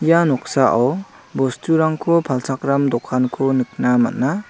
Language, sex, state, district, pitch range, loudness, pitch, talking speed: Garo, male, Meghalaya, South Garo Hills, 125-165 Hz, -18 LUFS, 135 Hz, 95 wpm